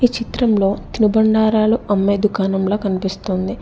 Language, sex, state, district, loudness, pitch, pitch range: Telugu, female, Telangana, Hyderabad, -17 LUFS, 210 Hz, 195-220 Hz